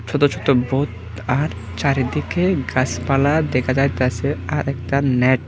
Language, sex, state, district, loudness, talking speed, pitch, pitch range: Bengali, male, Tripura, Unakoti, -20 LUFS, 130 wpm, 135 Hz, 125-140 Hz